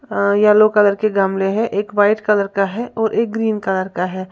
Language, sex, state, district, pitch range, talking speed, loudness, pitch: Hindi, female, Uttar Pradesh, Lalitpur, 195-220 Hz, 235 wpm, -16 LUFS, 210 Hz